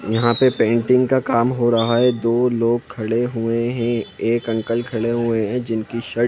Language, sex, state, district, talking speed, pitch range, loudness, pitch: Hindi, male, Jharkhand, Sahebganj, 200 wpm, 115-120 Hz, -19 LUFS, 115 Hz